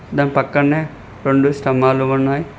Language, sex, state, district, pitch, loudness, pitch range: Telugu, male, Telangana, Mahabubabad, 135 Hz, -16 LUFS, 135-140 Hz